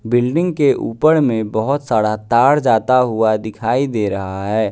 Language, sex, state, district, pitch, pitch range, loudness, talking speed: Hindi, male, Bihar, West Champaran, 115 Hz, 110-135 Hz, -16 LUFS, 165 wpm